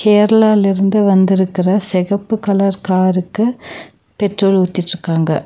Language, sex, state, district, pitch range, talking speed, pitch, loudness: Tamil, female, Tamil Nadu, Nilgiris, 185-205 Hz, 75 wpm, 195 Hz, -14 LUFS